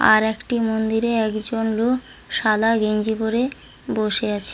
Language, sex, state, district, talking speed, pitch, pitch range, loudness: Bengali, female, West Bengal, Paschim Medinipur, 130 wpm, 220 Hz, 215-230 Hz, -20 LUFS